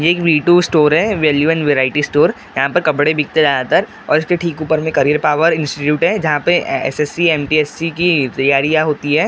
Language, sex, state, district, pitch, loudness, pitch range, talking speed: Hindi, male, Maharashtra, Gondia, 155 Hz, -14 LUFS, 145-165 Hz, 205 wpm